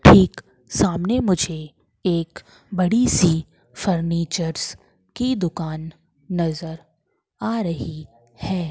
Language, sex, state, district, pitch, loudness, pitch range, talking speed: Hindi, female, Madhya Pradesh, Katni, 170 Hz, -22 LUFS, 160-185 Hz, 90 wpm